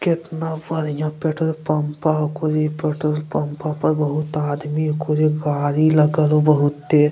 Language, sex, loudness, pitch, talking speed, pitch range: Angika, male, -20 LUFS, 155 Hz, 150 wpm, 150-155 Hz